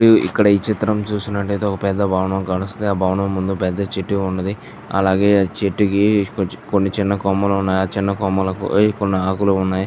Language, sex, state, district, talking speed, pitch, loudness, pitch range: Telugu, male, Andhra Pradesh, Chittoor, 145 wpm, 100 Hz, -18 LUFS, 95-100 Hz